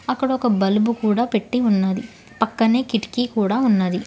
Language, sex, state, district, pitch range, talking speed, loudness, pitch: Telugu, female, Telangana, Hyderabad, 205-240 Hz, 145 wpm, -20 LUFS, 225 Hz